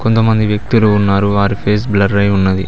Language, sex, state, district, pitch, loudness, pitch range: Telugu, male, Telangana, Mahabubabad, 100 Hz, -13 LUFS, 100-110 Hz